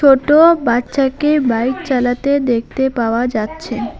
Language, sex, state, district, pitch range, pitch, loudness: Bengali, female, West Bengal, Alipurduar, 240-285 Hz, 260 Hz, -15 LUFS